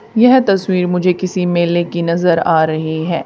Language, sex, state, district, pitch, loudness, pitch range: Hindi, female, Haryana, Charkhi Dadri, 175 Hz, -14 LUFS, 170-185 Hz